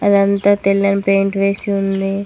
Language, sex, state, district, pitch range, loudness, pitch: Telugu, female, Telangana, Mahabubabad, 195-200 Hz, -15 LUFS, 195 Hz